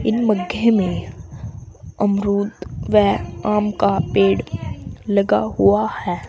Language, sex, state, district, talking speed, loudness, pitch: Hindi, female, Uttar Pradesh, Saharanpur, 105 wpm, -19 LUFS, 200 Hz